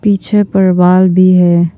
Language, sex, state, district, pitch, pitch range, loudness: Hindi, female, Arunachal Pradesh, Papum Pare, 185 Hz, 180-195 Hz, -9 LUFS